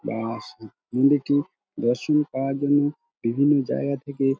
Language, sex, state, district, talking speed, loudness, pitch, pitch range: Bengali, male, West Bengal, Dakshin Dinajpur, 135 wpm, -23 LUFS, 140 Hz, 125-145 Hz